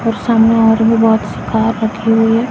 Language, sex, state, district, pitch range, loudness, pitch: Hindi, female, Chhattisgarh, Raipur, 220-230 Hz, -13 LUFS, 225 Hz